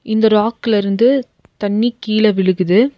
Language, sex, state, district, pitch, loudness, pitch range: Tamil, female, Tamil Nadu, Nilgiris, 220 Hz, -15 LUFS, 205-240 Hz